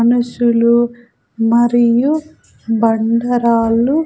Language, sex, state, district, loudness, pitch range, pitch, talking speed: Telugu, female, Andhra Pradesh, Sri Satya Sai, -14 LUFS, 230-240 Hz, 235 Hz, 45 wpm